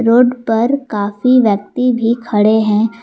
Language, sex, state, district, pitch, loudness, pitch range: Hindi, female, Jharkhand, Palamu, 230 Hz, -14 LUFS, 210-250 Hz